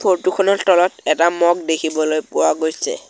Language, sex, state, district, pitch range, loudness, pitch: Assamese, male, Assam, Sonitpur, 160-190 Hz, -17 LUFS, 175 Hz